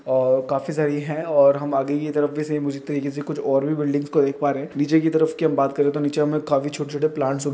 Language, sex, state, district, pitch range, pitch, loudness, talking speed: Hindi, male, Uttar Pradesh, Jyotiba Phule Nagar, 140-150 Hz, 145 Hz, -22 LUFS, 245 wpm